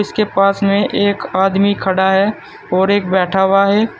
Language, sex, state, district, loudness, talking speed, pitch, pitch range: Hindi, male, Uttar Pradesh, Saharanpur, -14 LUFS, 180 wpm, 195 Hz, 190-205 Hz